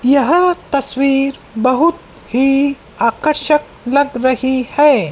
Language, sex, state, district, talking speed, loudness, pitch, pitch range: Hindi, female, Madhya Pradesh, Dhar, 95 wpm, -14 LUFS, 275 Hz, 255-290 Hz